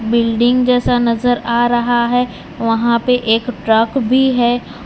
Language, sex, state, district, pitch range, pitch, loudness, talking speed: Hindi, male, Gujarat, Valsad, 235-245 Hz, 240 Hz, -15 LUFS, 150 wpm